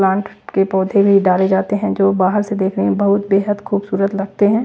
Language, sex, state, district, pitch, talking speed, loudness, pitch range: Hindi, female, Bihar, West Champaran, 195 Hz, 220 wpm, -16 LUFS, 190-205 Hz